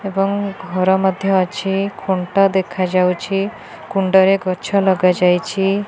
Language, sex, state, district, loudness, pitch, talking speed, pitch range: Odia, female, Odisha, Khordha, -17 LUFS, 190 Hz, 100 wpm, 185-195 Hz